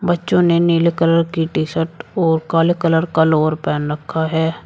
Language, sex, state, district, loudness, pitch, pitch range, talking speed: Hindi, male, Uttar Pradesh, Shamli, -17 LUFS, 165 Hz, 160-170 Hz, 195 wpm